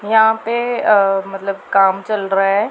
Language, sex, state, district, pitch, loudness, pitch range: Hindi, female, Punjab, Pathankot, 200 Hz, -16 LUFS, 195-220 Hz